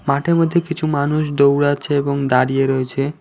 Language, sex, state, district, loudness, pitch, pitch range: Bengali, male, West Bengal, Alipurduar, -17 LUFS, 145 Hz, 135-155 Hz